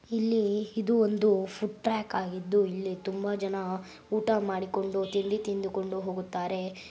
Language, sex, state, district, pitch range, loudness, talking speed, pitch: Kannada, female, Karnataka, Gulbarga, 190-215 Hz, -30 LUFS, 130 wpm, 195 Hz